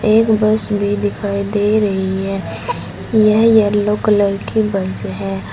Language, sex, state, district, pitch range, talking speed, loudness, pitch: Hindi, female, Uttar Pradesh, Saharanpur, 195-215 Hz, 140 wpm, -16 LUFS, 205 Hz